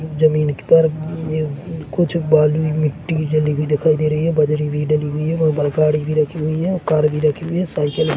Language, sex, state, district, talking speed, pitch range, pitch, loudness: Hindi, male, Chhattisgarh, Rajnandgaon, 250 wpm, 150-160 Hz, 155 Hz, -18 LUFS